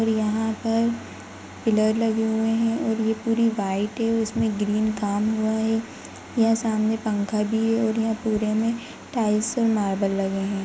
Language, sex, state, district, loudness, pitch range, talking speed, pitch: Hindi, female, Bihar, Begusarai, -24 LUFS, 215-225 Hz, 175 wpm, 220 Hz